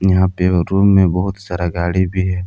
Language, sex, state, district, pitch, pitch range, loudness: Hindi, male, Jharkhand, Palamu, 95 Hz, 90-95 Hz, -16 LUFS